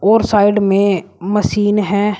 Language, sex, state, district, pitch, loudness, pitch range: Hindi, male, Uttar Pradesh, Shamli, 205 Hz, -14 LUFS, 195-210 Hz